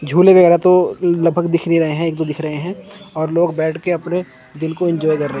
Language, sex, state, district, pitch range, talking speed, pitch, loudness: Hindi, male, Chandigarh, Chandigarh, 160-175 Hz, 255 wpm, 170 Hz, -16 LUFS